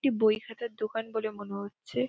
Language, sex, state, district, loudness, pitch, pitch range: Bengali, female, West Bengal, Dakshin Dinajpur, -32 LUFS, 215 Hz, 205-225 Hz